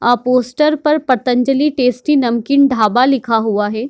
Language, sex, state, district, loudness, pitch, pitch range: Hindi, female, Bihar, Darbhanga, -14 LUFS, 250 Hz, 235-280 Hz